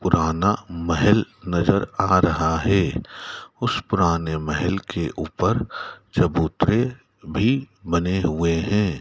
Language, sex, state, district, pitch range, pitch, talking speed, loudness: Hindi, male, Madhya Pradesh, Dhar, 85-105 Hz, 90 Hz, 105 wpm, -22 LUFS